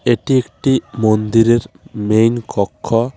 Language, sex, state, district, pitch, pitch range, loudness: Bengali, male, West Bengal, Alipurduar, 115 Hz, 110-120 Hz, -16 LUFS